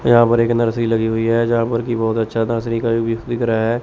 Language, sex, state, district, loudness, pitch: Hindi, male, Chandigarh, Chandigarh, -18 LUFS, 115 Hz